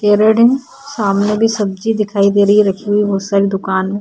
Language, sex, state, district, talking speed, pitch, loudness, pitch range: Hindi, female, Bihar, Vaishali, 195 wpm, 205 Hz, -14 LUFS, 200-220 Hz